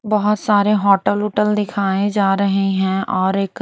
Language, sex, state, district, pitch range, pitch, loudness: Hindi, female, Maharashtra, Mumbai Suburban, 195-210 Hz, 200 Hz, -17 LUFS